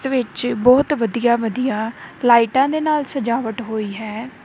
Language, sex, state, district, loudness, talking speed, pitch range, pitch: Punjabi, female, Punjab, Kapurthala, -19 LUFS, 150 wpm, 225-265 Hz, 240 Hz